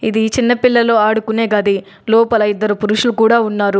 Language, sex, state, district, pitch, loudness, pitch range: Telugu, female, Telangana, Adilabad, 220 Hz, -14 LUFS, 210-230 Hz